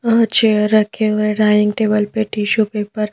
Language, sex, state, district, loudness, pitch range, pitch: Hindi, female, Madhya Pradesh, Bhopal, -16 LUFS, 210-220 Hz, 215 Hz